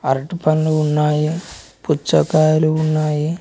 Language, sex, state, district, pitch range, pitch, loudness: Telugu, male, Telangana, Mahabubabad, 150-155 Hz, 155 Hz, -17 LUFS